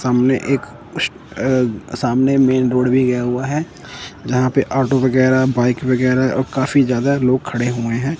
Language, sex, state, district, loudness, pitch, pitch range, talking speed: Hindi, male, Chandigarh, Chandigarh, -17 LUFS, 130 Hz, 125-135 Hz, 175 wpm